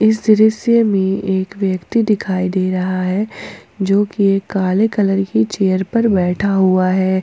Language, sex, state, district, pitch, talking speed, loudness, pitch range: Hindi, female, Jharkhand, Ranchi, 195 Hz, 165 wpm, -16 LUFS, 185-215 Hz